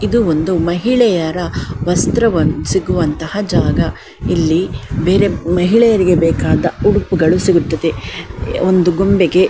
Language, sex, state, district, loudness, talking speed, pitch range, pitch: Kannada, female, Karnataka, Dakshina Kannada, -14 LUFS, 90 wpm, 160-190 Hz, 175 Hz